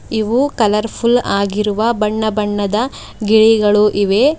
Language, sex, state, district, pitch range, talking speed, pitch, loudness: Kannada, female, Karnataka, Bidar, 210-230 Hz, 95 wpm, 215 Hz, -15 LUFS